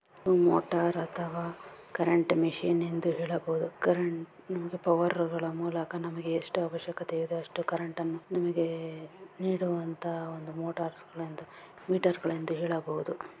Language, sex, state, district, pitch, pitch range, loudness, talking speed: Kannada, female, Karnataka, Bijapur, 170 Hz, 165-175 Hz, -31 LUFS, 100 wpm